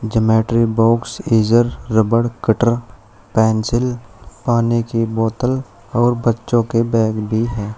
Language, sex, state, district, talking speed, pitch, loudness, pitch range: Hindi, male, Uttar Pradesh, Shamli, 115 wpm, 115 Hz, -17 LUFS, 110-120 Hz